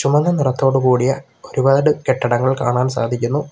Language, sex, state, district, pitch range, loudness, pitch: Malayalam, male, Kerala, Kollam, 125-140 Hz, -17 LUFS, 130 Hz